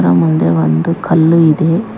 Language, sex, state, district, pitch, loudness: Kannada, female, Karnataka, Koppal, 155 Hz, -11 LUFS